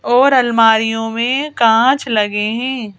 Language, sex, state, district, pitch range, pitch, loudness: Hindi, female, Madhya Pradesh, Bhopal, 225-260 Hz, 230 Hz, -14 LUFS